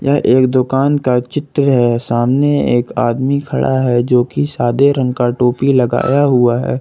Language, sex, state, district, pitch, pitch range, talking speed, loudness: Hindi, male, Jharkhand, Ranchi, 130 Hz, 120-140 Hz, 160 wpm, -14 LUFS